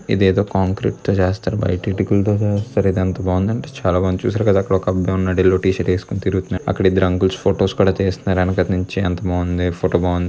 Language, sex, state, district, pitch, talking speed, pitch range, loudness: Telugu, male, Andhra Pradesh, Krishna, 95 Hz, 200 wpm, 90-100 Hz, -18 LUFS